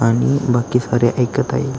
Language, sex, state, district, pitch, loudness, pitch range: Marathi, male, Maharashtra, Aurangabad, 125 Hz, -17 LUFS, 120-135 Hz